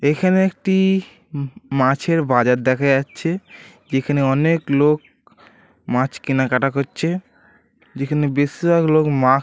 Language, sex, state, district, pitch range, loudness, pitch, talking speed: Bengali, male, West Bengal, Dakshin Dinajpur, 135-165 Hz, -19 LUFS, 145 Hz, 115 wpm